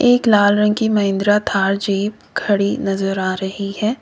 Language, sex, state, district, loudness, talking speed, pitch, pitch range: Hindi, female, Uttar Pradesh, Lalitpur, -17 LUFS, 180 wpm, 205 Hz, 195-210 Hz